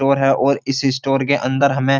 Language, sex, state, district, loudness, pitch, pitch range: Hindi, male, Uttar Pradesh, Jyotiba Phule Nagar, -17 LUFS, 135 Hz, 135-140 Hz